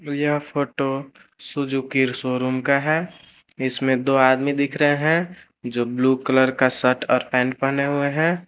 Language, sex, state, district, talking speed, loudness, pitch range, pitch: Hindi, male, Jharkhand, Palamu, 155 wpm, -21 LUFS, 130-145 Hz, 135 Hz